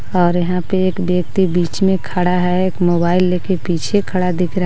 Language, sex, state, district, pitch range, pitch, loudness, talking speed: Hindi, female, Jharkhand, Garhwa, 175-185 Hz, 180 Hz, -16 LUFS, 220 wpm